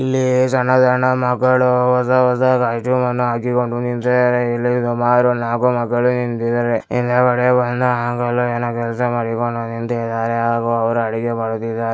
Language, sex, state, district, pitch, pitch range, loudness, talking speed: Kannada, male, Karnataka, Mysore, 120 Hz, 120-125 Hz, -17 LUFS, 85 wpm